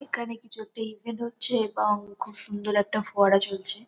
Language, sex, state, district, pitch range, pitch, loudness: Bengali, female, West Bengal, North 24 Parganas, 205-230 Hz, 215 Hz, -27 LUFS